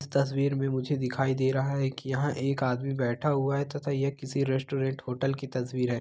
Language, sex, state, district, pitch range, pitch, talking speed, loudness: Hindi, male, Bihar, Begusarai, 130-140 Hz, 135 Hz, 220 wpm, -29 LUFS